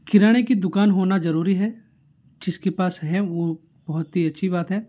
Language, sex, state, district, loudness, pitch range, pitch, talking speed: Hindi, male, Bihar, Muzaffarpur, -22 LUFS, 165-200 Hz, 185 Hz, 185 wpm